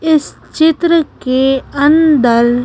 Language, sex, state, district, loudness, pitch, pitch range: Hindi, female, Madhya Pradesh, Bhopal, -12 LUFS, 290 Hz, 255-320 Hz